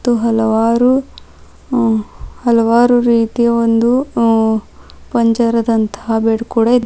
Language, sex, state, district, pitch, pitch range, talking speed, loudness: Kannada, female, Karnataka, Bidar, 230 Hz, 225-240 Hz, 95 wpm, -14 LUFS